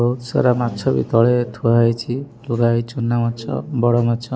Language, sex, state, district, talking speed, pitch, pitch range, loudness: Odia, male, Odisha, Malkangiri, 165 wpm, 120 Hz, 115-125 Hz, -19 LUFS